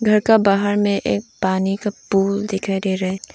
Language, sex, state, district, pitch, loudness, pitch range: Hindi, female, Arunachal Pradesh, Lower Dibang Valley, 195 Hz, -19 LUFS, 190-205 Hz